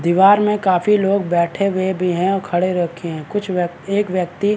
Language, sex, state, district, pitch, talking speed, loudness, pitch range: Hindi, male, Chhattisgarh, Rajnandgaon, 185 Hz, 225 wpm, -18 LUFS, 175-200 Hz